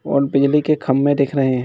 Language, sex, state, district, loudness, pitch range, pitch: Hindi, male, Jharkhand, Jamtara, -17 LUFS, 135-145 Hz, 140 Hz